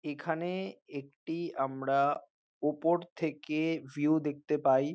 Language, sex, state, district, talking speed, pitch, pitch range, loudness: Bengali, male, West Bengal, North 24 Parganas, 95 wpm, 150 Hz, 140-165 Hz, -33 LUFS